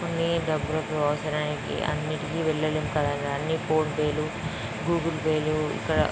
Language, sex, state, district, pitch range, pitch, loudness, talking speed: Telugu, female, Andhra Pradesh, Chittoor, 150-160 Hz, 155 Hz, -27 LUFS, 135 wpm